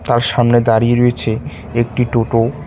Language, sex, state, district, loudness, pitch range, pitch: Bengali, male, West Bengal, Cooch Behar, -15 LUFS, 115-120 Hz, 120 Hz